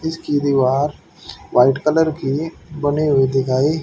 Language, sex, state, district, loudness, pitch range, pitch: Hindi, male, Haryana, Jhajjar, -18 LUFS, 135-155 Hz, 145 Hz